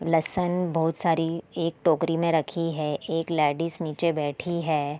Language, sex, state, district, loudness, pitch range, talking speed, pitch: Hindi, female, Bihar, Sitamarhi, -26 LUFS, 155-170 Hz, 155 wpm, 165 Hz